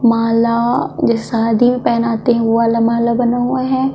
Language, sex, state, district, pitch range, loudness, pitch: Hindi, female, Chhattisgarh, Kabirdham, 230-245 Hz, -15 LUFS, 235 Hz